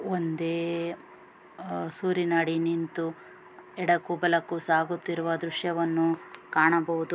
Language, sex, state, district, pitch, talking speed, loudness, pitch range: Kannada, female, Karnataka, Gulbarga, 165 Hz, 75 wpm, -28 LUFS, 165-175 Hz